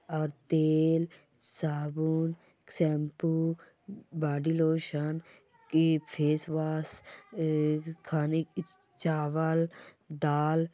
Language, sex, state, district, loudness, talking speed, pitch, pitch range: Hindi, male, Bihar, Sitamarhi, -30 LUFS, 65 wpm, 160 Hz, 155-165 Hz